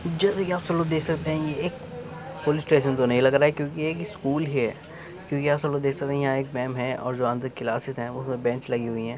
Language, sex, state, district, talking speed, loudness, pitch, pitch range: Hindi, male, Uttar Pradesh, Muzaffarnagar, 295 wpm, -25 LUFS, 140 Hz, 125-155 Hz